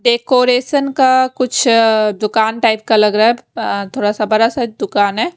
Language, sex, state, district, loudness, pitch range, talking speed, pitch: Hindi, female, Haryana, Rohtak, -14 LUFS, 215-255 Hz, 170 wpm, 230 Hz